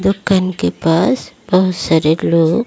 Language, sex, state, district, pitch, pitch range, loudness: Hindi, female, Odisha, Malkangiri, 165 Hz, 160-185 Hz, -15 LUFS